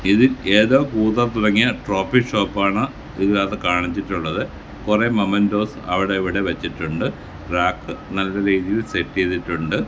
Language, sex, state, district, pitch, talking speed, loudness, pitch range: Malayalam, male, Kerala, Kasaragod, 100 Hz, 95 wpm, -20 LUFS, 95-110 Hz